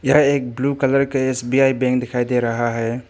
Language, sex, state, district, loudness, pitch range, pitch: Hindi, male, Arunachal Pradesh, Papum Pare, -19 LUFS, 125-135 Hz, 130 Hz